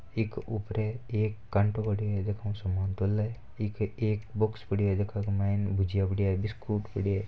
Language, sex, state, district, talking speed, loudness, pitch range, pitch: Marwari, male, Rajasthan, Nagaur, 150 wpm, -31 LUFS, 100-110 Hz, 105 Hz